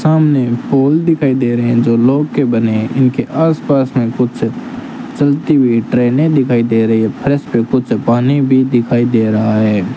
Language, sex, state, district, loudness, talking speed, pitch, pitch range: Hindi, male, Rajasthan, Bikaner, -13 LUFS, 185 wpm, 130 Hz, 120-145 Hz